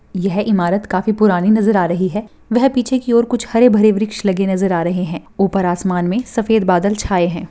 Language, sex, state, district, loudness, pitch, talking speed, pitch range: Hindi, female, Rajasthan, Churu, -16 LUFS, 205 Hz, 215 wpm, 185-220 Hz